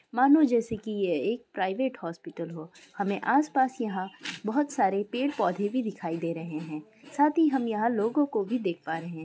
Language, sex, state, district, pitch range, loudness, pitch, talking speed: Hindi, female, Uttar Pradesh, Muzaffarnagar, 170-260 Hz, -28 LUFS, 215 Hz, 205 wpm